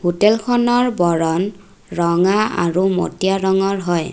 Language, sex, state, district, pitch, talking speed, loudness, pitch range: Assamese, female, Assam, Kamrup Metropolitan, 190 Hz, 100 wpm, -17 LUFS, 175-210 Hz